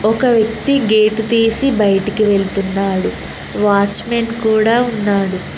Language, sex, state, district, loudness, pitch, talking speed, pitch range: Telugu, female, Telangana, Mahabubabad, -15 LUFS, 215 Hz, 95 wpm, 195-230 Hz